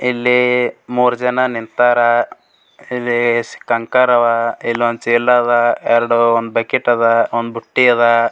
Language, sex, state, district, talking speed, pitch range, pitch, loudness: Kannada, male, Karnataka, Gulbarga, 125 wpm, 115-125 Hz, 120 Hz, -15 LUFS